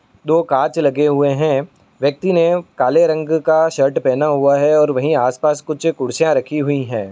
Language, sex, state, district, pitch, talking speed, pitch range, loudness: Hindi, male, Uttar Pradesh, Etah, 150 Hz, 185 wpm, 135-160 Hz, -16 LUFS